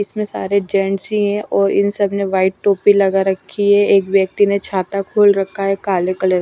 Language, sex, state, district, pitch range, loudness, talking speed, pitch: Hindi, female, Punjab, Pathankot, 195-205 Hz, -16 LUFS, 225 wpm, 195 Hz